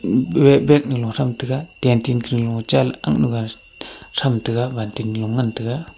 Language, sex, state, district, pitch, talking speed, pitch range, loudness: Wancho, male, Arunachal Pradesh, Longding, 120 Hz, 180 wpm, 115-130 Hz, -19 LUFS